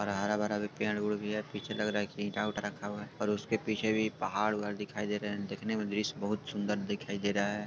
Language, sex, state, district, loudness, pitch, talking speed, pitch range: Hindi, male, Bihar, Sitamarhi, -34 LUFS, 105 Hz, 265 wpm, 100-105 Hz